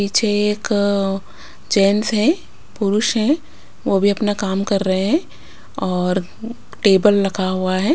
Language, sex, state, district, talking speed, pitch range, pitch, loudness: Hindi, female, Punjab, Pathankot, 145 wpm, 195-215 Hz, 200 Hz, -18 LUFS